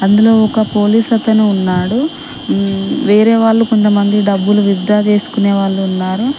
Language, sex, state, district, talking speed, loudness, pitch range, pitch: Telugu, female, Telangana, Mahabubabad, 130 wpm, -12 LUFS, 200-225 Hz, 210 Hz